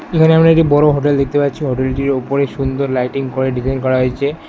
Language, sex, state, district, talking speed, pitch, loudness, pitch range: Bengali, male, West Bengal, Alipurduar, 200 wpm, 140 Hz, -15 LUFS, 130-145 Hz